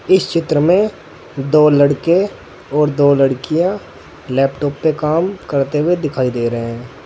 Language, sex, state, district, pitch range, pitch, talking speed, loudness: Hindi, male, Uttar Pradesh, Saharanpur, 135-170 Hz, 150 Hz, 145 wpm, -15 LUFS